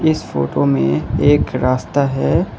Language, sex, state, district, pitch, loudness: Hindi, male, Assam, Kamrup Metropolitan, 125 Hz, -16 LUFS